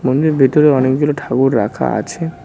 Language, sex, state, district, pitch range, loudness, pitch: Bengali, male, West Bengal, Cooch Behar, 130-150 Hz, -14 LUFS, 135 Hz